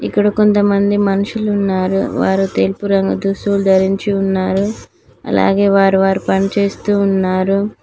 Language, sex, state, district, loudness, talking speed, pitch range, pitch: Telugu, female, Telangana, Mahabubabad, -15 LUFS, 115 wpm, 190-200 Hz, 195 Hz